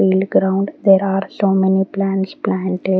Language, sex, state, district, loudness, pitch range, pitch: English, female, Haryana, Rohtak, -17 LUFS, 190-195 Hz, 190 Hz